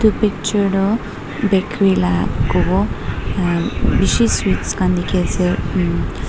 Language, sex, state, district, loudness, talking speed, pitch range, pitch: Nagamese, female, Nagaland, Dimapur, -18 LUFS, 115 wpm, 150-200 Hz, 185 Hz